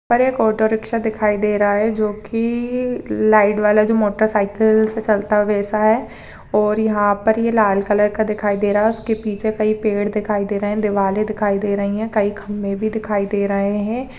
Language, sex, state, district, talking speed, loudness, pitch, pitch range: Hindi, female, Bihar, Saharsa, 220 wpm, -18 LUFS, 210 Hz, 205-220 Hz